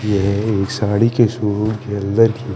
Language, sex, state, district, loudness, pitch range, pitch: Hindi, male, Chandigarh, Chandigarh, -17 LUFS, 100-115 Hz, 105 Hz